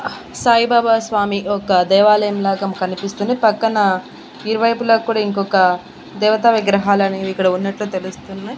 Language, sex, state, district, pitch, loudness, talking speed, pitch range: Telugu, female, Andhra Pradesh, Annamaya, 200 Hz, -16 LUFS, 110 wpm, 195-220 Hz